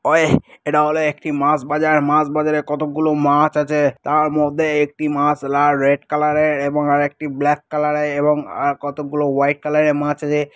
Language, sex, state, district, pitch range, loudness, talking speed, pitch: Bengali, male, West Bengal, Malda, 145-150 Hz, -17 LUFS, 185 wpm, 150 Hz